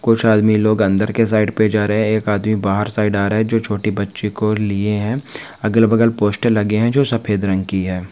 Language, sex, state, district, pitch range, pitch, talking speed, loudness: Hindi, male, Maharashtra, Nagpur, 105-110 Hz, 105 Hz, 245 wpm, -17 LUFS